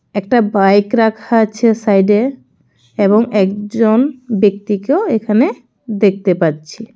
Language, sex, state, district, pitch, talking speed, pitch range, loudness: Bengali, female, Tripura, West Tripura, 215 Hz, 95 wpm, 200-230 Hz, -14 LUFS